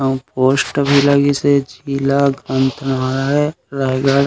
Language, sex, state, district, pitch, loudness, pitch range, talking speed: Chhattisgarhi, male, Chhattisgarh, Raigarh, 135 Hz, -16 LUFS, 130-140 Hz, 85 wpm